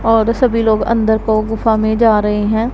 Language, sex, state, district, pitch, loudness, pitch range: Hindi, female, Punjab, Pathankot, 220 Hz, -14 LUFS, 220-225 Hz